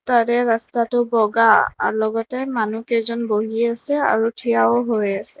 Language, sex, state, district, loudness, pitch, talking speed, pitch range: Assamese, female, Assam, Kamrup Metropolitan, -19 LUFS, 230 Hz, 135 wpm, 220-240 Hz